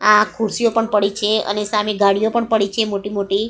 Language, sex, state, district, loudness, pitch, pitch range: Gujarati, female, Gujarat, Gandhinagar, -18 LUFS, 210 Hz, 205-220 Hz